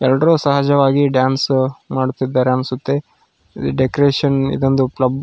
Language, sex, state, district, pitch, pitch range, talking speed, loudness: Kannada, male, Karnataka, Raichur, 135 Hz, 130-140 Hz, 105 wpm, -16 LUFS